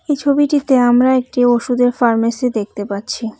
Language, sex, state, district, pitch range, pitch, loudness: Bengali, female, West Bengal, Cooch Behar, 230-260 Hz, 245 Hz, -15 LUFS